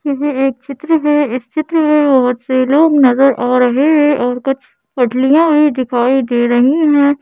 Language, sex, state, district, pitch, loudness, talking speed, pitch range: Hindi, female, Madhya Pradesh, Bhopal, 275 Hz, -12 LUFS, 185 wpm, 250-295 Hz